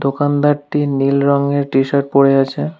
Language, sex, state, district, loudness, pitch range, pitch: Bengali, male, West Bengal, Alipurduar, -15 LUFS, 140-145 Hz, 140 Hz